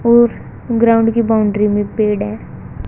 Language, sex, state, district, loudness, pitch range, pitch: Hindi, female, Haryana, Charkhi Dadri, -14 LUFS, 210-230 Hz, 225 Hz